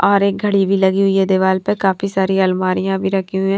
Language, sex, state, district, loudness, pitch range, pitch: Hindi, female, Haryana, Rohtak, -16 LUFS, 190-195 Hz, 195 Hz